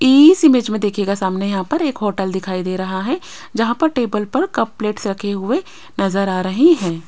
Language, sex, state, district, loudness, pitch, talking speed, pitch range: Hindi, female, Rajasthan, Jaipur, -17 LUFS, 210 Hz, 210 wpm, 195-275 Hz